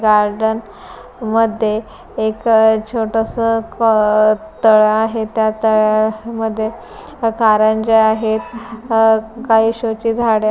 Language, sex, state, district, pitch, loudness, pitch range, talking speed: Marathi, female, Maharashtra, Pune, 220 Hz, -15 LUFS, 215-225 Hz, 105 wpm